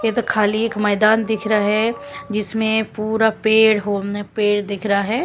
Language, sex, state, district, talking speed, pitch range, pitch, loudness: Hindi, female, Punjab, Kapurthala, 185 wpm, 205-220 Hz, 215 Hz, -18 LUFS